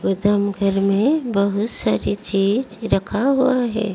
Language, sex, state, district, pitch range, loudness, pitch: Hindi, female, Odisha, Malkangiri, 195-235 Hz, -19 LUFS, 205 Hz